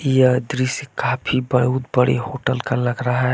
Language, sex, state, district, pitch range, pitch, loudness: Hindi, male, Jharkhand, Deoghar, 125-130 Hz, 130 Hz, -20 LUFS